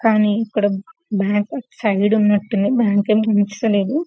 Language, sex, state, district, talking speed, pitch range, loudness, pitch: Telugu, female, Telangana, Karimnagar, 120 wpm, 205-225 Hz, -18 LUFS, 210 Hz